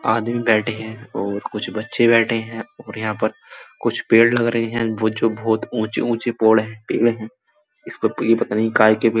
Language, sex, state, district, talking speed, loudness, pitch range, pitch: Hindi, male, Uttar Pradesh, Muzaffarnagar, 195 wpm, -19 LUFS, 110-115 Hz, 115 Hz